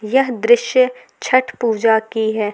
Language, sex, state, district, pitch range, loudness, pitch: Hindi, female, Jharkhand, Garhwa, 220-255 Hz, -16 LUFS, 235 Hz